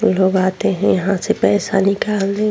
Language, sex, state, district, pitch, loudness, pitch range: Hindi, female, Uttar Pradesh, Jyotiba Phule Nagar, 195 Hz, -17 LUFS, 190-210 Hz